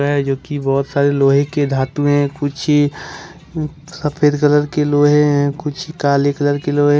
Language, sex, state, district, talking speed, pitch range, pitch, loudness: Hindi, male, Jharkhand, Ranchi, 180 wpm, 140-150 Hz, 145 Hz, -16 LUFS